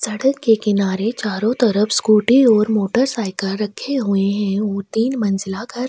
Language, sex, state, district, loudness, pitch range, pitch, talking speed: Hindi, female, Chhattisgarh, Sukma, -18 LUFS, 200-235 Hz, 215 Hz, 175 wpm